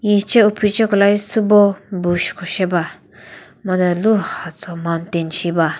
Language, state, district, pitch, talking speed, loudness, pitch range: Chakhesang, Nagaland, Dimapur, 185 Hz, 155 wpm, -17 LUFS, 175-205 Hz